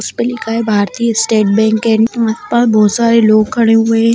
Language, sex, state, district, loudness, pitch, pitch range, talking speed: Hindi, female, Bihar, Darbhanga, -12 LUFS, 225 Hz, 220-230 Hz, 215 wpm